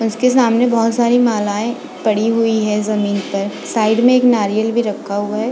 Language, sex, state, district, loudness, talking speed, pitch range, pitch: Hindi, female, Goa, North and South Goa, -16 LUFS, 195 wpm, 210-235 Hz, 225 Hz